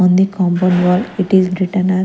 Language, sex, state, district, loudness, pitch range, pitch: English, female, Punjab, Kapurthala, -14 LUFS, 180-190 Hz, 185 Hz